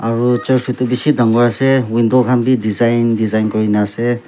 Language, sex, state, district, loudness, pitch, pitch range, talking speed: Nagamese, male, Nagaland, Kohima, -14 LUFS, 120 Hz, 115-125 Hz, 195 wpm